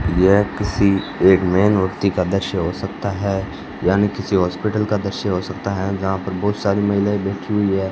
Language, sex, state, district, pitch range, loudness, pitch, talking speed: Hindi, male, Rajasthan, Bikaner, 95-100 Hz, -19 LUFS, 100 Hz, 195 wpm